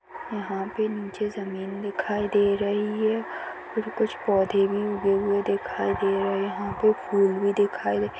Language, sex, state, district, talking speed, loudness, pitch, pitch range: Hindi, female, Maharashtra, Nagpur, 170 wpm, -26 LUFS, 200 Hz, 195-210 Hz